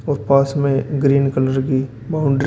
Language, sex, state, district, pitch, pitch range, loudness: Hindi, male, Uttar Pradesh, Shamli, 140 Hz, 135-140 Hz, -18 LUFS